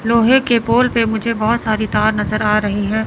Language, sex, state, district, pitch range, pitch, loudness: Hindi, male, Chandigarh, Chandigarh, 215-235 Hz, 220 Hz, -15 LUFS